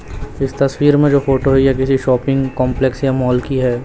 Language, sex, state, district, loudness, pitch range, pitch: Hindi, male, Chhattisgarh, Raipur, -15 LUFS, 125-135 Hz, 135 Hz